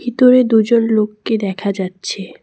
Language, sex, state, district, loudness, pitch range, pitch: Bengali, female, West Bengal, Cooch Behar, -15 LUFS, 200-235 Hz, 220 Hz